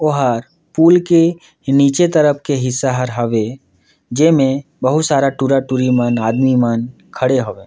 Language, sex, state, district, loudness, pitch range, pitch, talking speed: Surgujia, male, Chhattisgarh, Sarguja, -15 LUFS, 125-155 Hz, 135 Hz, 135 wpm